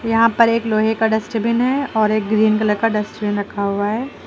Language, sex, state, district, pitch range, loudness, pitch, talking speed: Hindi, female, Uttar Pradesh, Lucknow, 210-230 Hz, -18 LUFS, 220 Hz, 225 wpm